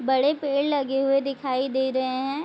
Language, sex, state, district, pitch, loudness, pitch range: Hindi, female, Bihar, Vaishali, 270 Hz, -24 LUFS, 265-280 Hz